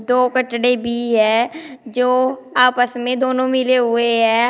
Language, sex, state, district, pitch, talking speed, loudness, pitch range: Hindi, female, Uttar Pradesh, Shamli, 250 Hz, 145 wpm, -17 LUFS, 235-255 Hz